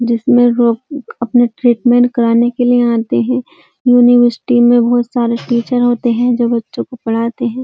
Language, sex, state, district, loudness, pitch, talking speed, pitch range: Hindi, female, Uttar Pradesh, Jyotiba Phule Nagar, -13 LUFS, 240 Hz, 175 wpm, 235-245 Hz